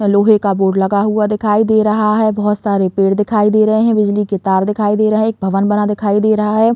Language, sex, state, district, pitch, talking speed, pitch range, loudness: Hindi, female, Uttar Pradesh, Hamirpur, 210 Hz, 250 wpm, 200-215 Hz, -14 LUFS